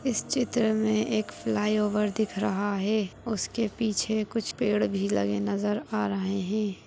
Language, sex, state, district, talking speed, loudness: Hindi, female, Chhattisgarh, Bilaspur, 155 wpm, -28 LUFS